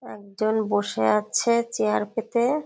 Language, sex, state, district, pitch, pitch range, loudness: Bengali, female, West Bengal, Kolkata, 215 Hz, 200-235 Hz, -24 LUFS